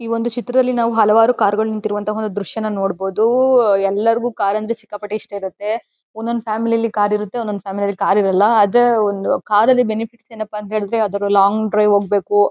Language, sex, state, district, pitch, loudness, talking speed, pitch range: Kannada, female, Karnataka, Mysore, 215 Hz, -17 LUFS, 190 wpm, 205-230 Hz